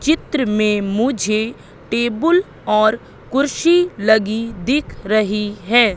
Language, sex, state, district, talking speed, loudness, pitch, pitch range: Hindi, female, Madhya Pradesh, Katni, 100 wpm, -17 LUFS, 230 Hz, 215-275 Hz